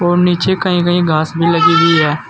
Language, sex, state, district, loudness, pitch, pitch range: Hindi, male, Uttar Pradesh, Saharanpur, -12 LUFS, 170 Hz, 160-175 Hz